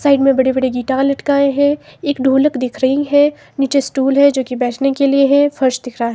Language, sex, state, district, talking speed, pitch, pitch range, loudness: Hindi, female, Himachal Pradesh, Shimla, 235 wpm, 275 Hz, 260-280 Hz, -15 LUFS